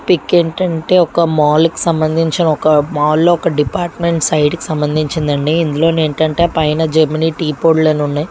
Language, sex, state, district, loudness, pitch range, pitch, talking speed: Telugu, female, Telangana, Karimnagar, -13 LUFS, 150-165 Hz, 160 Hz, 150 wpm